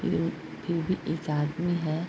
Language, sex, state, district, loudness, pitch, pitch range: Hindi, female, Bihar, Sitamarhi, -30 LUFS, 165 Hz, 155-175 Hz